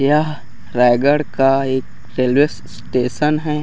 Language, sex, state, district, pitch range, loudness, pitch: Hindi, male, Chhattisgarh, Raigarh, 125-150 Hz, -17 LUFS, 135 Hz